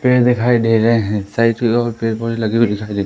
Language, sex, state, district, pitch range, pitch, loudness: Hindi, male, Madhya Pradesh, Katni, 110-120 Hz, 115 Hz, -16 LUFS